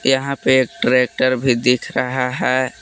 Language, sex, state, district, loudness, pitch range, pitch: Hindi, male, Jharkhand, Palamu, -17 LUFS, 125-130 Hz, 130 Hz